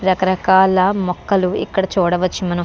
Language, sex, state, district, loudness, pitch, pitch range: Telugu, female, Andhra Pradesh, Krishna, -16 LUFS, 185 Hz, 180-190 Hz